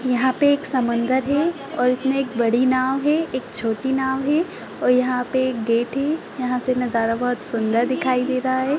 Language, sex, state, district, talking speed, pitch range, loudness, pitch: Kumaoni, female, Uttarakhand, Tehri Garhwal, 205 wpm, 245-270 Hz, -21 LUFS, 255 Hz